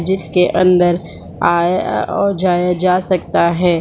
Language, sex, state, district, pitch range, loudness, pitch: Hindi, female, Bihar, Supaul, 175-185 Hz, -15 LUFS, 180 Hz